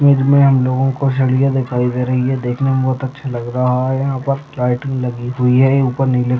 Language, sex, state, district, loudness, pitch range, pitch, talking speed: Hindi, male, Chhattisgarh, Raigarh, -16 LUFS, 125-135 Hz, 130 Hz, 235 wpm